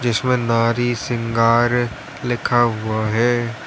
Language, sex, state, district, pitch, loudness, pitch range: Hindi, male, Uttar Pradesh, Lalitpur, 120 Hz, -19 LUFS, 115-120 Hz